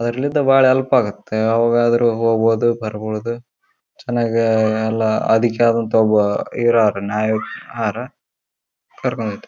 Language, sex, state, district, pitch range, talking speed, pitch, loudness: Kannada, male, Karnataka, Raichur, 110-120 Hz, 120 wpm, 115 Hz, -17 LUFS